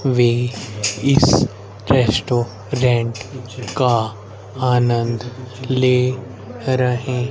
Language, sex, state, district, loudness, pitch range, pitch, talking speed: Hindi, male, Haryana, Rohtak, -18 LUFS, 110-125 Hz, 120 Hz, 55 wpm